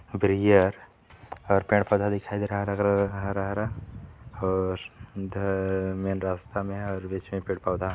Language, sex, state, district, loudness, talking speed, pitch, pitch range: Hindi, male, Chhattisgarh, Balrampur, -27 LUFS, 120 wpm, 100 Hz, 95-100 Hz